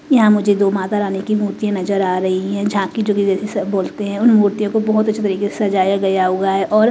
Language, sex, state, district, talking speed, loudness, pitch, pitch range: Hindi, female, Bihar, West Champaran, 245 wpm, -17 LUFS, 200 Hz, 195-210 Hz